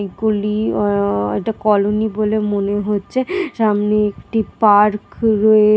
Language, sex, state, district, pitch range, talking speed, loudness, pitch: Bengali, female, West Bengal, Dakshin Dinajpur, 205-220 Hz, 115 wpm, -17 LUFS, 210 Hz